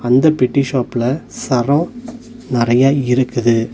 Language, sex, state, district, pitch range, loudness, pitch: Tamil, male, Tamil Nadu, Nilgiris, 120-145 Hz, -16 LUFS, 130 Hz